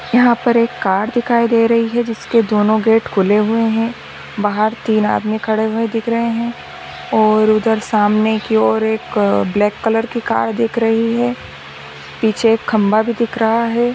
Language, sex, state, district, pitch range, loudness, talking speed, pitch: Hindi, female, Chhattisgarh, Raigarh, 215-230 Hz, -15 LUFS, 175 wpm, 225 Hz